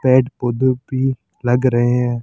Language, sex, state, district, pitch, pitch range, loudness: Hindi, male, Rajasthan, Jaipur, 130 Hz, 120-130 Hz, -18 LUFS